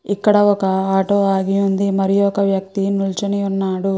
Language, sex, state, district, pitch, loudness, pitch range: Telugu, female, Andhra Pradesh, Guntur, 195 Hz, -17 LUFS, 195-200 Hz